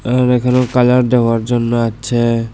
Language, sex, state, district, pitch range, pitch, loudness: Bengali, male, Tripura, West Tripura, 115-125 Hz, 120 Hz, -14 LUFS